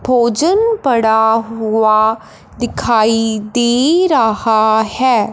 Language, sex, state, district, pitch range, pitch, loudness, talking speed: Hindi, male, Punjab, Fazilka, 220-250 Hz, 225 Hz, -13 LUFS, 80 wpm